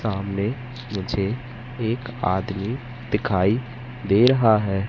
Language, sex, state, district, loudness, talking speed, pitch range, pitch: Hindi, male, Madhya Pradesh, Katni, -23 LUFS, 100 wpm, 100-125 Hz, 110 Hz